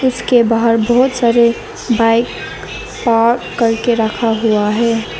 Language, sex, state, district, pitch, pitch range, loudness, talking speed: Hindi, female, Arunachal Pradesh, Lower Dibang Valley, 230 Hz, 225-235 Hz, -14 LUFS, 115 wpm